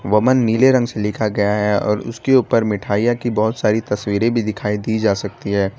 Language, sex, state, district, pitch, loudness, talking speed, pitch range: Hindi, male, Gujarat, Valsad, 105 Hz, -18 LUFS, 220 wpm, 105-115 Hz